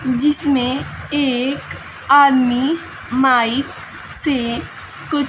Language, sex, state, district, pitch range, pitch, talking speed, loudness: Hindi, female, Bihar, West Champaran, 255-285 Hz, 270 Hz, 70 wpm, -17 LUFS